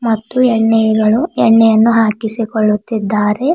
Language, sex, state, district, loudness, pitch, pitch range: Kannada, female, Karnataka, Bidar, -13 LUFS, 225 Hz, 220-230 Hz